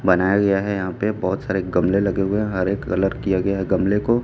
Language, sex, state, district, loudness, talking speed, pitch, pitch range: Hindi, male, Chhattisgarh, Raipur, -20 LUFS, 255 wpm, 95 Hz, 95-100 Hz